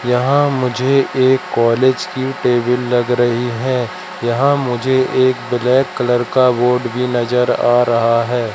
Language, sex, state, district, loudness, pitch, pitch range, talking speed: Hindi, male, Madhya Pradesh, Katni, -15 LUFS, 125 Hz, 120-130 Hz, 145 wpm